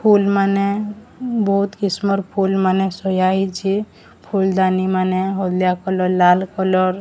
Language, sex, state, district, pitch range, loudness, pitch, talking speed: Odia, female, Odisha, Sambalpur, 185-200 Hz, -18 LUFS, 190 Hz, 130 wpm